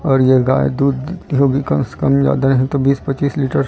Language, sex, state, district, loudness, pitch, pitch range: Hindi, male, Chhattisgarh, Raipur, -15 LUFS, 135 Hz, 130-140 Hz